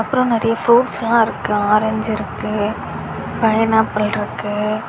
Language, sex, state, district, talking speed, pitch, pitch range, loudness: Tamil, female, Tamil Nadu, Kanyakumari, 100 wpm, 220 Hz, 210-230 Hz, -18 LUFS